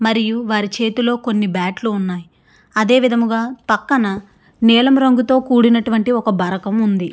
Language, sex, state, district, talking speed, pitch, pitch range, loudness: Telugu, female, Andhra Pradesh, Srikakulam, 135 wpm, 225 Hz, 205-240 Hz, -16 LUFS